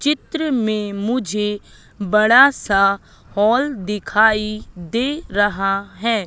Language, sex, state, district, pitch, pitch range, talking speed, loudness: Hindi, female, Madhya Pradesh, Katni, 215 Hz, 200-245 Hz, 95 wpm, -18 LUFS